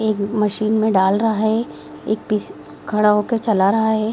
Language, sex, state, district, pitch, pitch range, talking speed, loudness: Hindi, female, Bihar, Darbhanga, 215 Hz, 210-220 Hz, 190 wpm, -18 LUFS